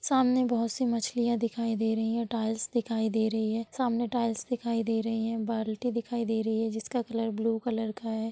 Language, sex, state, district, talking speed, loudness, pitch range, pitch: Hindi, female, Bihar, Sitamarhi, 215 wpm, -30 LUFS, 225-235 Hz, 230 Hz